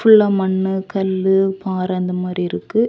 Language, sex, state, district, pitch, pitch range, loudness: Tamil, female, Tamil Nadu, Kanyakumari, 190 Hz, 185-195 Hz, -18 LUFS